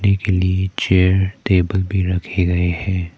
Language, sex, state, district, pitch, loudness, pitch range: Hindi, male, Arunachal Pradesh, Papum Pare, 95 Hz, -18 LUFS, 90-95 Hz